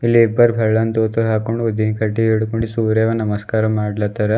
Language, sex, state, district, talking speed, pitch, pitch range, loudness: Kannada, male, Karnataka, Bidar, 150 wpm, 110 Hz, 110-115 Hz, -17 LUFS